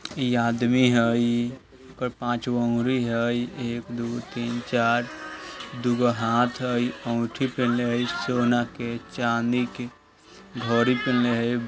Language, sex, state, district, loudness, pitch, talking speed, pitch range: Bajjika, male, Bihar, Vaishali, -25 LUFS, 120 Hz, 150 wpm, 115-125 Hz